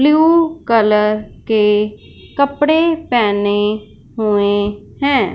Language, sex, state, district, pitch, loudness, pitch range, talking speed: Hindi, male, Punjab, Fazilka, 220 Hz, -15 LUFS, 210-290 Hz, 80 wpm